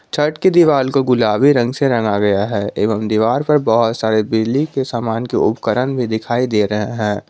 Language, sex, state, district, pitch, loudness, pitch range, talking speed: Hindi, male, Jharkhand, Garhwa, 115 Hz, -16 LUFS, 110-135 Hz, 205 wpm